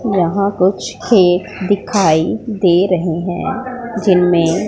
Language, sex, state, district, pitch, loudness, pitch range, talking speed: Hindi, female, Punjab, Pathankot, 190 Hz, -15 LUFS, 175-205 Hz, 90 wpm